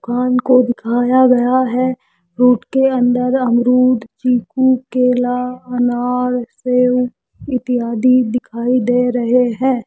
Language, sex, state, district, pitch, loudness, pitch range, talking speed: Hindi, female, Rajasthan, Jaipur, 250 Hz, -15 LUFS, 245-255 Hz, 105 wpm